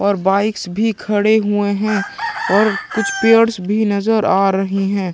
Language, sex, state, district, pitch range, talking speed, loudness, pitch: Hindi, male, Chhattisgarh, Sukma, 195-220 Hz, 175 wpm, -16 LUFS, 210 Hz